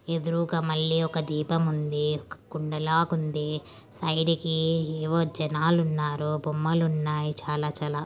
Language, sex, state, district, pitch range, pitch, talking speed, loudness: Telugu, female, Andhra Pradesh, Anantapur, 150-165 Hz, 155 Hz, 125 wpm, -27 LUFS